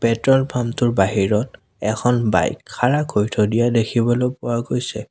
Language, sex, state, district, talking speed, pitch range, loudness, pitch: Assamese, male, Assam, Sonitpur, 150 wpm, 105-125 Hz, -19 LUFS, 115 Hz